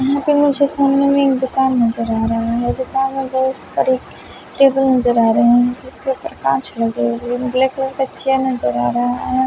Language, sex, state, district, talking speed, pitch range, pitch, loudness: Hindi, female, Bihar, West Champaran, 215 wpm, 230-270 Hz, 260 Hz, -16 LUFS